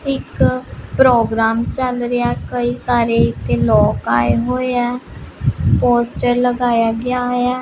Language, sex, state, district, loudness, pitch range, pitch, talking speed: Punjabi, female, Punjab, Pathankot, -16 LUFS, 230-250 Hz, 245 Hz, 120 wpm